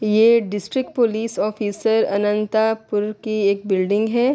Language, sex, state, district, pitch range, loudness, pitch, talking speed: Urdu, female, Andhra Pradesh, Anantapur, 205-225 Hz, -20 LUFS, 215 Hz, 125 wpm